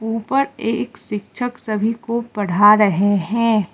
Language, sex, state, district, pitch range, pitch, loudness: Hindi, female, Mizoram, Aizawl, 210-230 Hz, 225 Hz, -18 LUFS